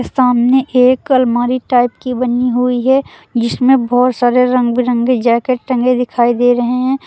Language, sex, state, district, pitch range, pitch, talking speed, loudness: Hindi, female, Uttar Pradesh, Lucknow, 245-255 Hz, 250 Hz, 160 wpm, -13 LUFS